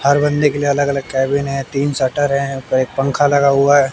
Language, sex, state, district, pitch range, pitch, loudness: Hindi, male, Haryana, Jhajjar, 135-145 Hz, 140 Hz, -16 LUFS